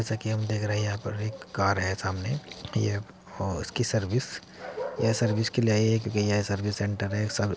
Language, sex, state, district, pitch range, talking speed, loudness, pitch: Hindi, male, Uttar Pradesh, Muzaffarnagar, 100-110 Hz, 205 wpm, -28 LUFS, 105 Hz